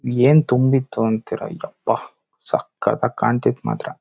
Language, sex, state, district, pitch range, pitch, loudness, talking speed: Kannada, male, Karnataka, Shimoga, 115-135 Hz, 125 Hz, -20 LUFS, 120 wpm